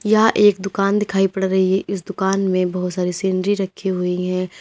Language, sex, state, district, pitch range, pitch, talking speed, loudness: Hindi, female, Uttar Pradesh, Lalitpur, 185-200 Hz, 190 Hz, 210 wpm, -19 LUFS